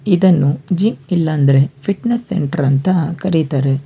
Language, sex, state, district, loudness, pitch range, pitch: Kannada, male, Karnataka, Bangalore, -16 LUFS, 140-185 Hz, 165 Hz